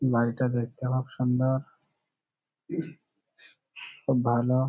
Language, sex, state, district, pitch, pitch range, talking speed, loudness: Bengali, male, West Bengal, Kolkata, 125 Hz, 120-130 Hz, 75 wpm, -28 LUFS